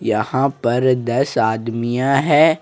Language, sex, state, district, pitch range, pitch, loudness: Hindi, male, Jharkhand, Ranchi, 115-140 Hz, 125 Hz, -17 LUFS